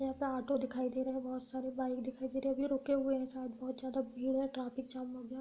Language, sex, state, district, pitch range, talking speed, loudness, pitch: Hindi, female, Uttar Pradesh, Deoria, 255-265 Hz, 310 wpm, -38 LUFS, 260 Hz